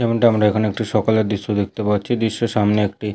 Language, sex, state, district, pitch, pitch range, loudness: Bengali, male, West Bengal, Jhargram, 110 Hz, 105-115 Hz, -19 LUFS